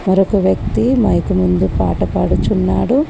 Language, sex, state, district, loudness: Telugu, female, Telangana, Komaram Bheem, -15 LUFS